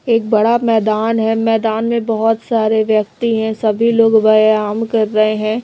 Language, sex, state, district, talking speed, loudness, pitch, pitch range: Hindi, female, Chhattisgarh, Raipur, 170 wpm, -14 LUFS, 220 Hz, 215-225 Hz